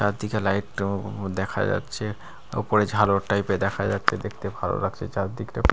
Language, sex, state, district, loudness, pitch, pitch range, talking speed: Bengali, male, Bihar, Katihar, -26 LUFS, 100 Hz, 100-105 Hz, 155 wpm